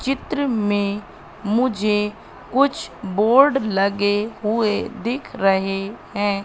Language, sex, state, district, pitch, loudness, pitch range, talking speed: Hindi, female, Madhya Pradesh, Katni, 210 Hz, -20 LUFS, 205-240 Hz, 95 wpm